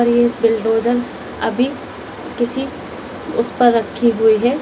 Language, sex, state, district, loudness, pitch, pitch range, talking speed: Hindi, female, Uttar Pradesh, Lalitpur, -17 LUFS, 240 Hz, 230-245 Hz, 115 wpm